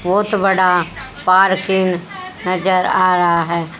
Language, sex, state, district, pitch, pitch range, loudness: Hindi, female, Haryana, Jhajjar, 185 Hz, 175-190 Hz, -15 LUFS